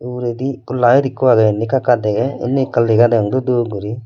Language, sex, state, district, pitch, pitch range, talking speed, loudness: Chakma, male, Tripura, Dhalai, 120 Hz, 115-130 Hz, 235 wpm, -15 LUFS